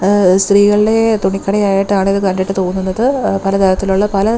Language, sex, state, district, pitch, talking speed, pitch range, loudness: Malayalam, female, Kerala, Thiruvananthapuram, 195 Hz, 150 wpm, 190-205 Hz, -13 LUFS